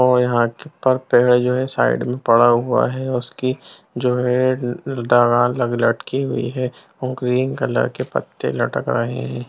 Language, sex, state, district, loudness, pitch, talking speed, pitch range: Hindi, male, Bihar, Jamui, -19 LUFS, 125 Hz, 175 wpm, 120-130 Hz